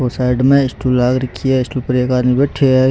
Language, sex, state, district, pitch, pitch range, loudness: Rajasthani, male, Rajasthan, Churu, 130 Hz, 125-130 Hz, -15 LUFS